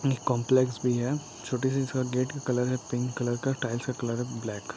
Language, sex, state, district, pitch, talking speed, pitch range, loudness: Hindi, male, Uttar Pradesh, Etah, 125 Hz, 240 wpm, 120-130 Hz, -29 LUFS